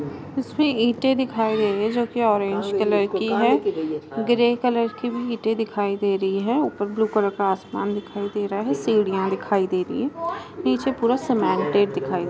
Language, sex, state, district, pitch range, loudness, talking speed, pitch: Hindi, female, Bihar, Saran, 200-240 Hz, -22 LUFS, 205 wpm, 210 Hz